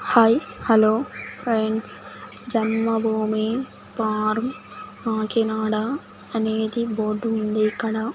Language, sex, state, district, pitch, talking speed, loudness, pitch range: Telugu, female, Andhra Pradesh, Sri Satya Sai, 220 Hz, 80 wpm, -23 LUFS, 215-230 Hz